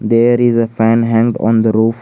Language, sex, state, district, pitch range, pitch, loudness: English, male, Jharkhand, Garhwa, 110-115 Hz, 115 Hz, -12 LUFS